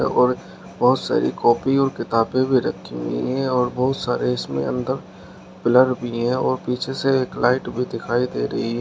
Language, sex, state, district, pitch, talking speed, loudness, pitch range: Hindi, male, Uttar Pradesh, Shamli, 125 Hz, 190 wpm, -21 LUFS, 115-130 Hz